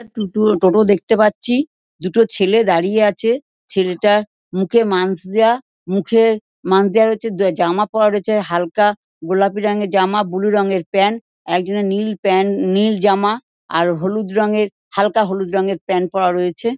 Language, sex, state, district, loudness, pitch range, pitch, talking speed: Bengali, female, West Bengal, Dakshin Dinajpur, -16 LUFS, 190-215 Hz, 205 Hz, 145 wpm